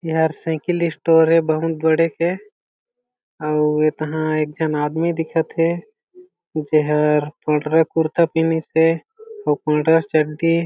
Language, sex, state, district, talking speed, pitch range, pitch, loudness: Chhattisgarhi, male, Chhattisgarh, Jashpur, 130 wpm, 155-165 Hz, 160 Hz, -19 LUFS